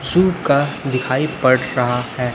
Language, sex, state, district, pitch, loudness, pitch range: Hindi, male, Chhattisgarh, Raipur, 130 Hz, -17 LUFS, 125-145 Hz